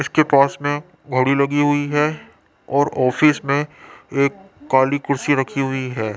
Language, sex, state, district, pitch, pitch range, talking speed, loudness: Hindi, male, Rajasthan, Jaipur, 140 Hz, 135-145 Hz, 155 wpm, -19 LUFS